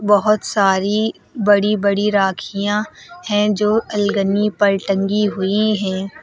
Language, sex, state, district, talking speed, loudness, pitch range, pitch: Hindi, female, Uttar Pradesh, Lucknow, 115 wpm, -17 LUFS, 195-210 Hz, 205 Hz